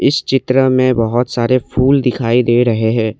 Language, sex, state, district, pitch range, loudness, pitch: Hindi, male, Assam, Kamrup Metropolitan, 115-130 Hz, -14 LUFS, 125 Hz